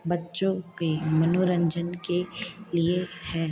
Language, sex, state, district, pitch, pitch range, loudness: Hindi, female, Uttar Pradesh, Hamirpur, 175 Hz, 170-180 Hz, -27 LUFS